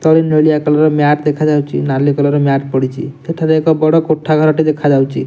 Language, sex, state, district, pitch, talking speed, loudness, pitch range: Odia, male, Odisha, Nuapada, 150 Hz, 205 wpm, -13 LUFS, 145-155 Hz